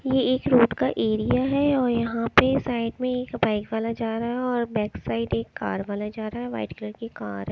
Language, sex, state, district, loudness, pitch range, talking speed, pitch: Hindi, female, Chandigarh, Chandigarh, -25 LUFS, 210-250 Hz, 245 wpm, 230 Hz